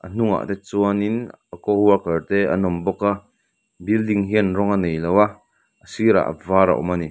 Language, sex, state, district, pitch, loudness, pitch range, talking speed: Mizo, male, Mizoram, Aizawl, 100 Hz, -20 LUFS, 90-105 Hz, 205 wpm